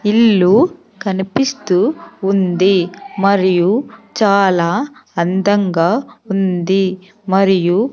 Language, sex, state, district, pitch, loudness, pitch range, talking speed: Telugu, female, Andhra Pradesh, Sri Satya Sai, 195 Hz, -15 LUFS, 185-215 Hz, 60 wpm